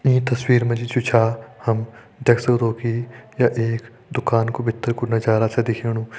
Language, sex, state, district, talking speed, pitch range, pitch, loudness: Hindi, male, Uttarakhand, Tehri Garhwal, 175 wpm, 115-120 Hz, 115 Hz, -21 LUFS